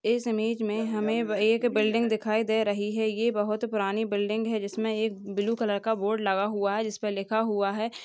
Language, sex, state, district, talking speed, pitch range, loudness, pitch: Hindi, female, Maharashtra, Sindhudurg, 215 wpm, 210-225 Hz, -27 LUFS, 215 Hz